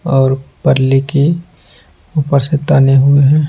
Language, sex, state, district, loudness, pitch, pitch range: Hindi, male, Punjab, Pathankot, -12 LUFS, 140 Hz, 135-150 Hz